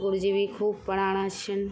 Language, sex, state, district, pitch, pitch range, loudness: Garhwali, female, Uttarakhand, Tehri Garhwal, 200 Hz, 195-200 Hz, -28 LUFS